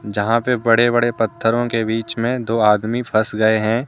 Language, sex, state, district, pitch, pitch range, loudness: Hindi, male, Jharkhand, Deoghar, 115 Hz, 110-120 Hz, -18 LUFS